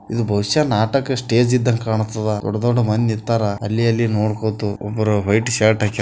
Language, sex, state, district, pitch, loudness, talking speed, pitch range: Kannada, male, Karnataka, Bijapur, 110 Hz, -18 LUFS, 180 wpm, 105-115 Hz